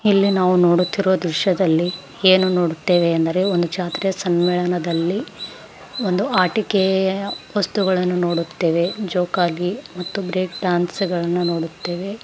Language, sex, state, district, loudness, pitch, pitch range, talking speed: Kannada, female, Karnataka, Raichur, -19 LUFS, 180 Hz, 175-190 Hz, 105 wpm